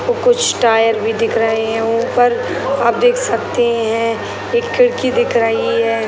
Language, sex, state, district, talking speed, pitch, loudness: Hindi, male, Bihar, Sitamarhi, 160 wpm, 230 Hz, -15 LUFS